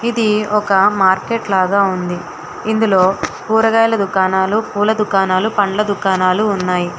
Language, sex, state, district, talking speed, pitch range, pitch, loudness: Telugu, female, Telangana, Hyderabad, 110 wpm, 190-215 Hz, 200 Hz, -15 LUFS